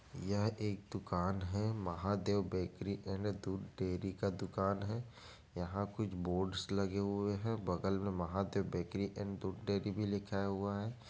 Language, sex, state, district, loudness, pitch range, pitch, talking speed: Hindi, male, Chhattisgarh, Raigarh, -39 LUFS, 95-100 Hz, 100 Hz, 155 wpm